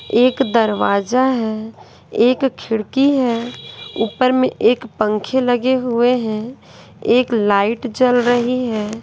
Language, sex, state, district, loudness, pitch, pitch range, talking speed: Hindi, female, Bihar, West Champaran, -17 LUFS, 240 Hz, 220-255 Hz, 120 wpm